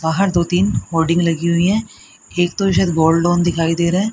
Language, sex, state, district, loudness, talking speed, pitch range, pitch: Hindi, female, Haryana, Rohtak, -16 LUFS, 220 wpm, 165-190 Hz, 175 Hz